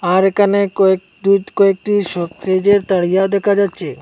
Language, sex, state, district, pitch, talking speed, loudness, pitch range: Bengali, male, Assam, Hailakandi, 195 Hz, 135 wpm, -15 LUFS, 185-200 Hz